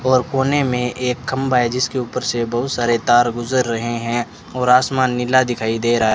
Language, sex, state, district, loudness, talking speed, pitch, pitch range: Hindi, male, Rajasthan, Bikaner, -18 LUFS, 215 wpm, 125 Hz, 120-130 Hz